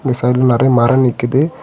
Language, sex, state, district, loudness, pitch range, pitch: Tamil, male, Tamil Nadu, Kanyakumari, -13 LUFS, 120-130 Hz, 130 Hz